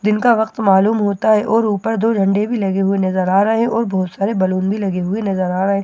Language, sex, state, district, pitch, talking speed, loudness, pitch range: Hindi, female, Bihar, Katihar, 200 Hz, 295 wpm, -16 LUFS, 190-220 Hz